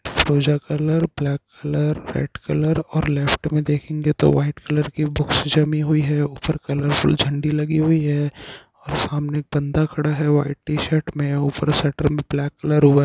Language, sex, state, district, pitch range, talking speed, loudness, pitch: Hindi, male, Bihar, Jahanabad, 145-155 Hz, 180 wpm, -20 LUFS, 150 Hz